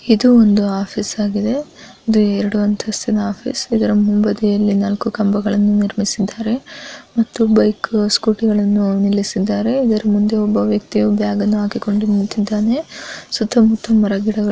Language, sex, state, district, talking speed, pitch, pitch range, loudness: Kannada, female, Karnataka, Bellary, 125 wpm, 210 Hz, 205-225 Hz, -16 LUFS